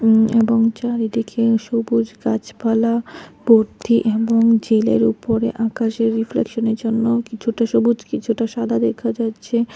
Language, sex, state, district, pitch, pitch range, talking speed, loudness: Bengali, female, Tripura, West Tripura, 225 Hz, 225-230 Hz, 110 wpm, -18 LUFS